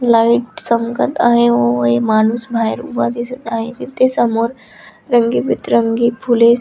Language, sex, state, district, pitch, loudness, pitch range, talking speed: Marathi, female, Maharashtra, Dhule, 230 Hz, -15 LUFS, 215-240 Hz, 135 wpm